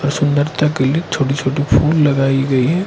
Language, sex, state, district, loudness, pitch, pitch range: Hindi, male, Arunachal Pradesh, Lower Dibang Valley, -15 LUFS, 145 Hz, 135-150 Hz